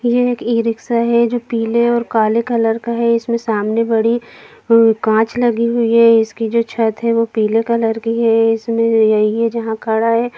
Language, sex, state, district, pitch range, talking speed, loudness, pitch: Hindi, female, Bihar, Jamui, 225-235 Hz, 190 wpm, -15 LUFS, 230 Hz